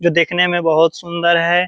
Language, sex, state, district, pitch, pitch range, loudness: Hindi, male, Bihar, Purnia, 170 Hz, 170-175 Hz, -15 LUFS